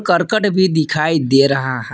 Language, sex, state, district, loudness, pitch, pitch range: Hindi, male, Jharkhand, Palamu, -15 LUFS, 160 Hz, 135-185 Hz